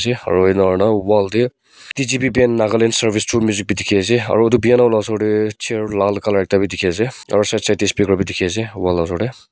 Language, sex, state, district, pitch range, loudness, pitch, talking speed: Nagamese, male, Nagaland, Kohima, 100-115 Hz, -16 LUFS, 105 Hz, 250 wpm